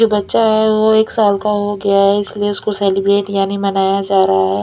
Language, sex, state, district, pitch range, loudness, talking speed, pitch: Hindi, female, Punjab, Fazilka, 195-210 Hz, -14 LUFS, 235 wpm, 200 Hz